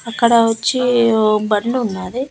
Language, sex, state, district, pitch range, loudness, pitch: Telugu, female, Andhra Pradesh, Annamaya, 215-245 Hz, -16 LUFS, 230 Hz